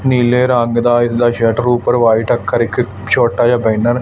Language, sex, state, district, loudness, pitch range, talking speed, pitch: Punjabi, male, Punjab, Fazilka, -13 LUFS, 115-120 Hz, 210 wpm, 120 Hz